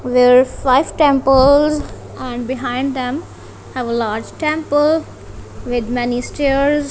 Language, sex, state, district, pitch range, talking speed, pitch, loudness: English, female, Punjab, Kapurthala, 245-290 Hz, 105 wpm, 265 Hz, -16 LUFS